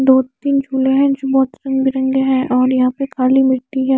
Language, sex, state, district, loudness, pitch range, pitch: Hindi, female, Chandigarh, Chandigarh, -15 LUFS, 260-270 Hz, 265 Hz